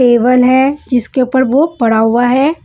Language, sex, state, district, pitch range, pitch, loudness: Hindi, female, Punjab, Kapurthala, 240-270 Hz, 255 Hz, -11 LUFS